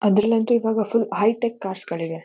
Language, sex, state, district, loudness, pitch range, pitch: Kannada, female, Karnataka, Mysore, -22 LUFS, 195-230 Hz, 215 Hz